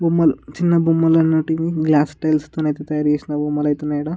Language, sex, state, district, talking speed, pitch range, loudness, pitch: Telugu, male, Andhra Pradesh, Guntur, 200 wpm, 150-165 Hz, -18 LUFS, 155 Hz